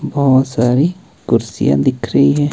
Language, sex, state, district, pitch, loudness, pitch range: Hindi, male, Himachal Pradesh, Shimla, 130 Hz, -14 LUFS, 90-145 Hz